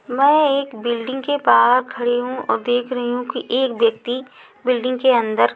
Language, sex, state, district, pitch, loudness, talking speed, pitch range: Hindi, female, Chhattisgarh, Raipur, 250 Hz, -19 LUFS, 195 wpm, 240-260 Hz